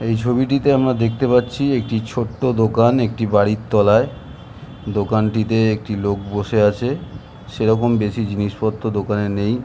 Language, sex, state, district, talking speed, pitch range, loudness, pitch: Bengali, male, West Bengal, Jhargram, 130 wpm, 105-120 Hz, -18 LUFS, 110 Hz